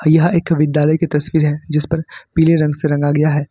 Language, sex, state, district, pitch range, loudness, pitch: Hindi, male, Jharkhand, Ranchi, 150-165 Hz, -16 LUFS, 155 Hz